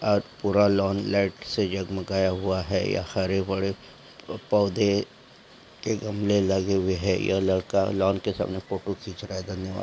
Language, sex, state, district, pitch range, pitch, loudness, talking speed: Hindi, male, Jharkhand, Sahebganj, 95-100 Hz, 95 Hz, -26 LUFS, 165 wpm